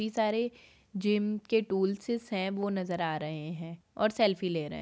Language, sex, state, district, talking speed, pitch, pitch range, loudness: Hindi, female, Bihar, Samastipur, 200 wpm, 200 Hz, 175-215 Hz, -31 LUFS